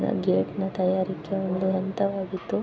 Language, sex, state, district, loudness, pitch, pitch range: Kannada, female, Karnataka, Dakshina Kannada, -26 LUFS, 190 Hz, 185-195 Hz